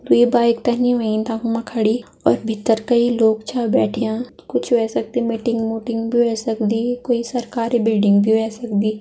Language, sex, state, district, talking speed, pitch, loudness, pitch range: Garhwali, female, Uttarakhand, Tehri Garhwal, 175 wpm, 230 Hz, -19 LUFS, 220-240 Hz